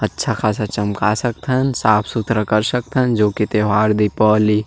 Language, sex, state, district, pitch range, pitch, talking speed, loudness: Chhattisgarhi, male, Chhattisgarh, Rajnandgaon, 105-115 Hz, 110 Hz, 155 wpm, -17 LUFS